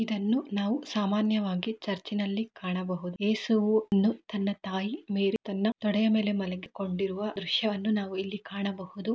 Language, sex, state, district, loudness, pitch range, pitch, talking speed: Kannada, female, Karnataka, Mysore, -30 LUFS, 195-215 Hz, 205 Hz, 110 wpm